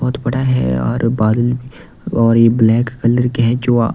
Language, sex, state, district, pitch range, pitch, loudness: Hindi, male, Delhi, New Delhi, 115-125 Hz, 120 Hz, -15 LUFS